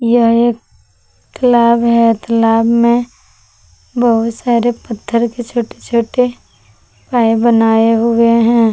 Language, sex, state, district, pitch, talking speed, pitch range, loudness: Hindi, female, Jharkhand, Palamu, 230 Hz, 110 wpm, 225-235 Hz, -13 LUFS